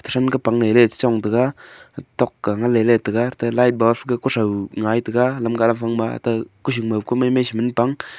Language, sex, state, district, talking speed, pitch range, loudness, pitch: Wancho, male, Arunachal Pradesh, Longding, 125 wpm, 115-125 Hz, -19 LUFS, 115 Hz